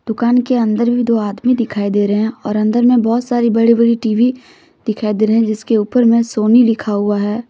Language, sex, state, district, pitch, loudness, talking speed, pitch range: Hindi, female, Jharkhand, Deoghar, 230 Hz, -14 LUFS, 230 wpm, 215-240 Hz